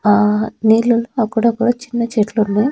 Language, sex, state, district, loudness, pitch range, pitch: Telugu, female, Andhra Pradesh, Annamaya, -16 LUFS, 215-235 Hz, 225 Hz